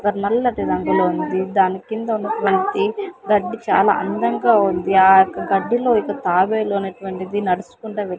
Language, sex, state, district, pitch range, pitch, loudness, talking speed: Telugu, female, Andhra Pradesh, Sri Satya Sai, 190-225 Hz, 205 Hz, -18 LUFS, 145 wpm